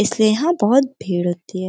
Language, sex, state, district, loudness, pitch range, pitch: Hindi, female, Uttar Pradesh, Gorakhpur, -18 LUFS, 185-250 Hz, 210 Hz